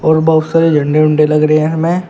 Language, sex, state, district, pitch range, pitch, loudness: Hindi, male, Uttar Pradesh, Shamli, 155-160 Hz, 155 Hz, -11 LUFS